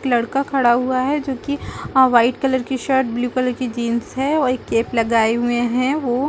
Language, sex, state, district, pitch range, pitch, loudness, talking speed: Hindi, female, Chhattisgarh, Rajnandgaon, 240-265 Hz, 255 Hz, -19 LUFS, 220 wpm